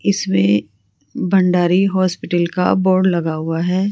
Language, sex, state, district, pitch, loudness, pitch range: Hindi, female, Rajasthan, Jaipur, 180 Hz, -16 LUFS, 160-190 Hz